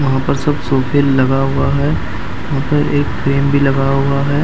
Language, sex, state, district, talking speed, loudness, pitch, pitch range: Hindi, male, Maharashtra, Mumbai Suburban, 205 wpm, -15 LUFS, 135 Hz, 135-140 Hz